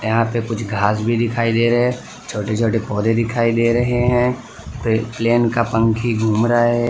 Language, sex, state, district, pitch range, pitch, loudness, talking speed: Hindi, male, Gujarat, Valsad, 110-120 Hz, 115 Hz, -18 LUFS, 200 wpm